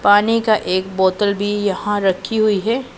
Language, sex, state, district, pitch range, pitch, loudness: Hindi, female, Punjab, Pathankot, 190-215 Hz, 205 Hz, -17 LUFS